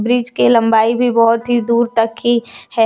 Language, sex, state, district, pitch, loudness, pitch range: Hindi, female, Jharkhand, Deoghar, 235 Hz, -14 LUFS, 225-240 Hz